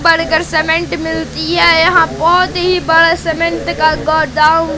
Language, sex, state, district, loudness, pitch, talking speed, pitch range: Hindi, female, Madhya Pradesh, Katni, -12 LUFS, 325 Hz, 125 wpm, 310-335 Hz